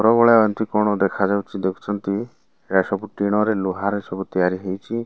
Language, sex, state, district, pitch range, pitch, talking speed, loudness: Odia, male, Odisha, Malkangiri, 95-110 Hz, 100 Hz, 180 wpm, -21 LUFS